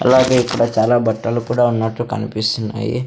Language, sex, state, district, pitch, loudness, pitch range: Telugu, male, Andhra Pradesh, Sri Satya Sai, 120 Hz, -17 LUFS, 110-125 Hz